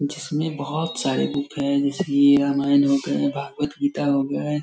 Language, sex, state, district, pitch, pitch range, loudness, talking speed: Hindi, male, Bihar, Darbhanga, 140 Hz, 140-145 Hz, -22 LUFS, 195 wpm